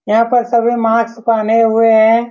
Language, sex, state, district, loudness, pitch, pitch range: Hindi, male, Bihar, Saran, -12 LUFS, 230 Hz, 225-235 Hz